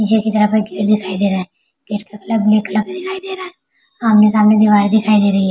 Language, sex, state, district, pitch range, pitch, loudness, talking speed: Hindi, female, Chhattisgarh, Balrampur, 205-220 Hz, 215 Hz, -15 LUFS, 250 wpm